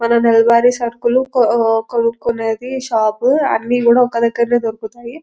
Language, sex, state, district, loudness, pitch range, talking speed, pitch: Telugu, female, Telangana, Nalgonda, -15 LUFS, 230-245 Hz, 125 wpm, 235 Hz